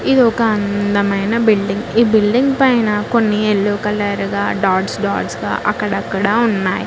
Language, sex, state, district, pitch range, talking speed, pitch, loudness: Telugu, female, Telangana, Mahabubabad, 200-230 Hz, 140 wpm, 210 Hz, -16 LUFS